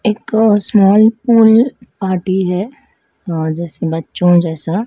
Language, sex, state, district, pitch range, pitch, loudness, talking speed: Hindi, female, Madhya Pradesh, Dhar, 175-220 Hz, 195 Hz, -13 LUFS, 100 wpm